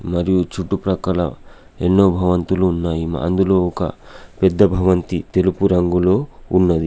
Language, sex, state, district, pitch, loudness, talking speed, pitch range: Telugu, male, Telangana, Adilabad, 90 Hz, -18 LUFS, 105 wpm, 90-95 Hz